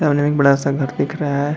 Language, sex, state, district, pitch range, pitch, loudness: Hindi, male, Bihar, Darbhanga, 140-150 Hz, 145 Hz, -18 LUFS